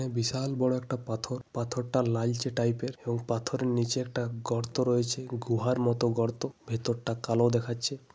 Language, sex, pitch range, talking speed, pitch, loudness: Bengali, male, 115-125 Hz, 175 wpm, 120 Hz, -30 LUFS